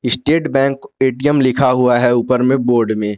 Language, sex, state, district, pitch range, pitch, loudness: Hindi, male, Jharkhand, Garhwa, 120-135 Hz, 125 Hz, -14 LUFS